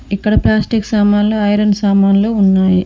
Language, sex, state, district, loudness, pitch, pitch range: Telugu, female, Telangana, Mahabubabad, -13 LUFS, 205 Hz, 195-210 Hz